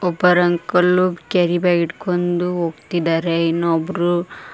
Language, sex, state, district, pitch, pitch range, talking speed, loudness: Kannada, female, Karnataka, Koppal, 175 Hz, 170-180 Hz, 95 wpm, -18 LUFS